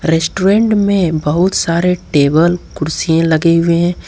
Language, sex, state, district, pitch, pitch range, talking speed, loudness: Hindi, male, Jharkhand, Ranchi, 170 Hz, 160-180 Hz, 130 wpm, -13 LUFS